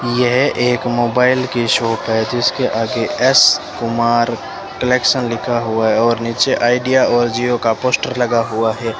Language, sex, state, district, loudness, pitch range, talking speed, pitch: Hindi, male, Rajasthan, Bikaner, -15 LUFS, 115-125 Hz, 160 wpm, 120 Hz